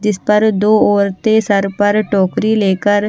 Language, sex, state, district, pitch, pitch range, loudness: Hindi, female, Bihar, Kaimur, 205 Hz, 200-215 Hz, -13 LUFS